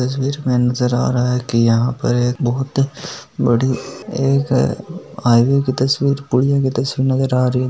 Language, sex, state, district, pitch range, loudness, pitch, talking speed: Marwari, male, Rajasthan, Nagaur, 125-135 Hz, -17 LUFS, 130 Hz, 155 wpm